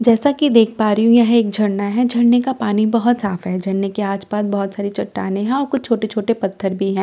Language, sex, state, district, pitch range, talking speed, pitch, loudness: Hindi, female, Delhi, New Delhi, 200-235 Hz, 275 wpm, 215 Hz, -17 LUFS